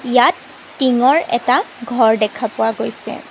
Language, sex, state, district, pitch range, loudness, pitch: Assamese, female, Assam, Kamrup Metropolitan, 225-255 Hz, -16 LUFS, 245 Hz